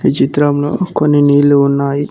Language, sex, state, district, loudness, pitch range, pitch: Telugu, male, Telangana, Mahabubabad, -12 LUFS, 140-145 Hz, 145 Hz